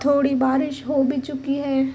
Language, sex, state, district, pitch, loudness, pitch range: Hindi, female, Jharkhand, Sahebganj, 275 Hz, -22 LUFS, 265-285 Hz